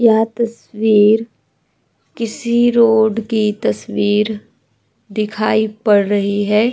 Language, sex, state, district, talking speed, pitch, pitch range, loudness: Hindi, female, Uttar Pradesh, Hamirpur, 90 wpm, 220 Hz, 210-230 Hz, -16 LUFS